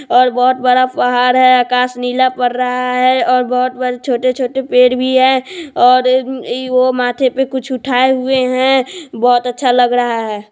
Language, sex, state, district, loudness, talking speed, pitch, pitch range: Hindi, female, Bihar, Sitamarhi, -13 LUFS, 170 wpm, 255 Hz, 250-260 Hz